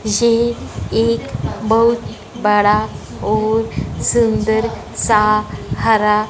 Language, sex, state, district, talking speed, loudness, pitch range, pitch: Hindi, female, Punjab, Fazilka, 75 wpm, -16 LUFS, 210-225 Hz, 215 Hz